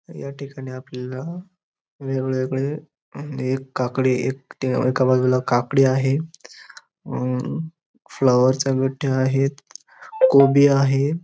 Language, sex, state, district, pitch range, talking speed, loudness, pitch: Marathi, male, Maharashtra, Dhule, 130-140 Hz, 95 wpm, -20 LUFS, 135 Hz